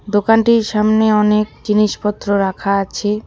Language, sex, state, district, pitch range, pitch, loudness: Bengali, female, West Bengal, Alipurduar, 205-215 Hz, 210 Hz, -15 LUFS